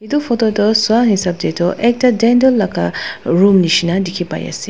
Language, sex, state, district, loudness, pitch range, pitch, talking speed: Nagamese, female, Nagaland, Dimapur, -14 LUFS, 175-235 Hz, 205 Hz, 205 wpm